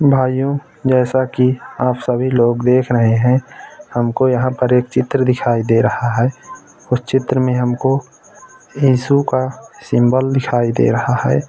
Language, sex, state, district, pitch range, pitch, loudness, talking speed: Hindi, male, Uttar Pradesh, Etah, 125-135 Hz, 130 Hz, -16 LUFS, 155 wpm